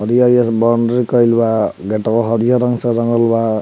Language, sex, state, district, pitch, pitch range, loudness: Bhojpuri, male, Bihar, Muzaffarpur, 115 Hz, 115-120 Hz, -14 LUFS